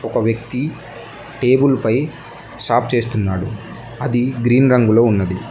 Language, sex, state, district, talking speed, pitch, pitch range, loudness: Telugu, male, Telangana, Mahabubabad, 110 wpm, 120 Hz, 115-130 Hz, -17 LUFS